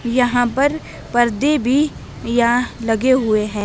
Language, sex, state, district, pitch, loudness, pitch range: Hindi, female, Himachal Pradesh, Shimla, 245 Hz, -17 LUFS, 235-260 Hz